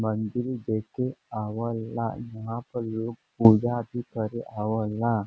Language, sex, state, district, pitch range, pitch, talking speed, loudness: Bhojpuri, male, Uttar Pradesh, Varanasi, 110-120 Hz, 115 Hz, 115 wpm, -27 LUFS